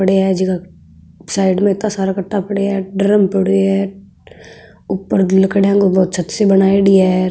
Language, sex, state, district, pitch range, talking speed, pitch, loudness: Marwari, female, Rajasthan, Nagaur, 190-195 Hz, 170 wpm, 195 Hz, -14 LUFS